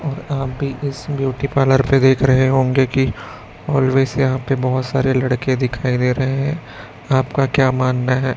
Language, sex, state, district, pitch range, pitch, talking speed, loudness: Hindi, male, Chhattisgarh, Raipur, 130-135 Hz, 130 Hz, 180 wpm, -17 LUFS